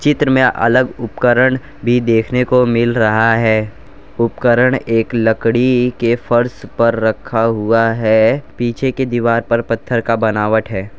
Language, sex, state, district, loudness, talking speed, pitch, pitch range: Hindi, male, Gujarat, Valsad, -14 LUFS, 145 wpm, 115 Hz, 115-125 Hz